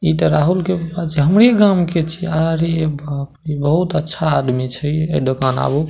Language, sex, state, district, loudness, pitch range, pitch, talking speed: Maithili, male, Bihar, Madhepura, -17 LUFS, 145-170 Hz, 155 Hz, 195 wpm